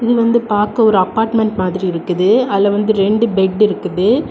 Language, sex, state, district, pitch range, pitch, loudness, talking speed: Tamil, female, Tamil Nadu, Kanyakumari, 190-225 Hz, 210 Hz, -14 LUFS, 165 wpm